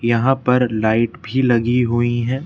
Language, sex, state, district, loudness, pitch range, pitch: Hindi, male, Madhya Pradesh, Bhopal, -17 LUFS, 115-125 Hz, 120 Hz